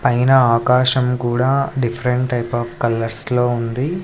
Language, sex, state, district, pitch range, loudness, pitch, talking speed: Telugu, male, Andhra Pradesh, Sri Satya Sai, 120-130 Hz, -17 LUFS, 125 Hz, 135 wpm